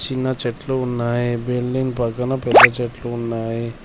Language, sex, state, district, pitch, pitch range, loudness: Telugu, male, Telangana, Komaram Bheem, 120 Hz, 120-130 Hz, -18 LUFS